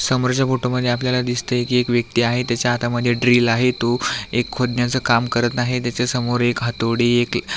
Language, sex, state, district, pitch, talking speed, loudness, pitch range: Marathi, male, Maharashtra, Aurangabad, 120 Hz, 200 wpm, -19 LUFS, 120-125 Hz